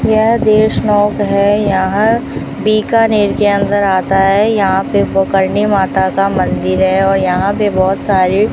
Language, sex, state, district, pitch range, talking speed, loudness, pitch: Hindi, female, Rajasthan, Bikaner, 190-210 Hz, 155 wpm, -12 LUFS, 200 Hz